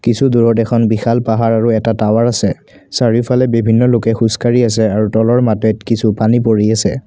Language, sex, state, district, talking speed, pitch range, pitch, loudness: Assamese, male, Assam, Kamrup Metropolitan, 180 wpm, 110-120 Hz, 115 Hz, -13 LUFS